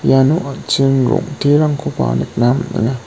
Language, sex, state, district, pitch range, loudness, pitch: Garo, male, Meghalaya, West Garo Hills, 120-145 Hz, -15 LUFS, 135 Hz